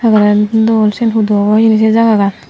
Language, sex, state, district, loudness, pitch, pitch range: Chakma, female, Tripura, Dhalai, -10 LUFS, 220 Hz, 210-225 Hz